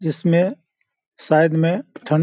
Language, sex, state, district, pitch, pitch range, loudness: Hindi, male, Bihar, Sitamarhi, 165 Hz, 155-175 Hz, -19 LUFS